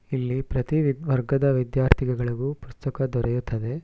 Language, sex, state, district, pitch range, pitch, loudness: Kannada, male, Karnataka, Bangalore, 120-135 Hz, 130 Hz, -25 LUFS